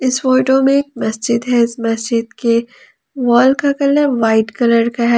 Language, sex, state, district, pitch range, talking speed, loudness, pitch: Hindi, female, Jharkhand, Ranchi, 230-265 Hz, 175 wpm, -14 LUFS, 240 Hz